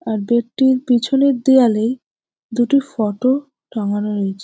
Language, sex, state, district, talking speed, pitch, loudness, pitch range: Bengali, female, West Bengal, North 24 Parganas, 135 wpm, 240 Hz, -17 LUFS, 215-265 Hz